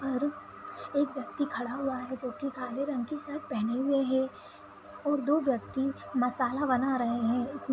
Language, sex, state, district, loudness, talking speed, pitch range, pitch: Kumaoni, male, Uttarakhand, Tehri Garhwal, -31 LUFS, 185 wpm, 255-290 Hz, 270 Hz